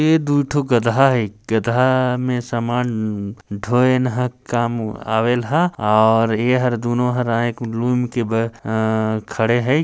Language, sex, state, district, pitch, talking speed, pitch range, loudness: Hindi, male, Chhattisgarh, Jashpur, 120 Hz, 150 wpm, 110-125 Hz, -19 LUFS